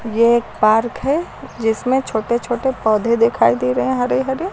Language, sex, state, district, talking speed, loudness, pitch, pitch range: Hindi, female, Uttar Pradesh, Lucknow, 185 wpm, -17 LUFS, 235 Hz, 220-260 Hz